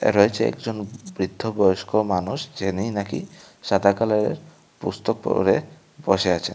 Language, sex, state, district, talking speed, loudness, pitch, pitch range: Bengali, male, Tripura, West Tripura, 120 wpm, -23 LUFS, 100 Hz, 95-110 Hz